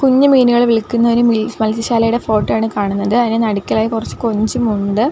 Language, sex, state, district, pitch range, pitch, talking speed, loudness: Malayalam, female, Kerala, Kollam, 215-240 Hz, 225 Hz, 175 wpm, -15 LUFS